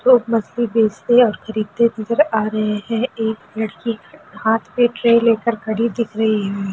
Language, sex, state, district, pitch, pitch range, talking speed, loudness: Hindi, female, Chhattisgarh, Raigarh, 225 Hz, 215-235 Hz, 170 wpm, -18 LUFS